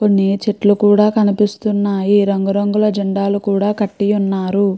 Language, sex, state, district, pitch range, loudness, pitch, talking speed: Telugu, female, Andhra Pradesh, Chittoor, 200-210 Hz, -15 LUFS, 205 Hz, 140 wpm